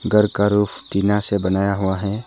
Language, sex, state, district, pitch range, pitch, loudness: Hindi, male, Arunachal Pradesh, Papum Pare, 100-105 Hz, 100 Hz, -19 LUFS